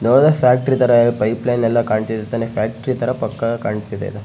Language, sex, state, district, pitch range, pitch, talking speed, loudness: Kannada, male, Karnataka, Bellary, 110-125 Hz, 115 Hz, 185 wpm, -17 LUFS